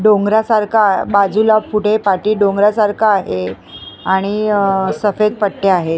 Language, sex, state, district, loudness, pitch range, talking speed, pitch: Marathi, female, Maharashtra, Mumbai Suburban, -14 LUFS, 190-215 Hz, 100 wpm, 205 Hz